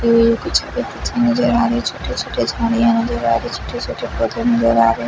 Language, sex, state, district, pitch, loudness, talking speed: Hindi, female, Bihar, Kaimur, 230 Hz, -17 LUFS, 200 wpm